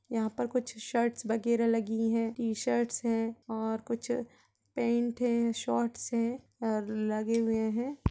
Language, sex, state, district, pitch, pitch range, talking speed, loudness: Hindi, female, Uttar Pradesh, Budaun, 230 Hz, 225-240 Hz, 140 wpm, -32 LUFS